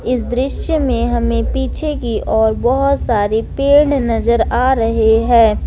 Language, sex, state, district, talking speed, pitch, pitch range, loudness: Hindi, female, Jharkhand, Ranchi, 150 wpm, 240 Hz, 225-265 Hz, -15 LUFS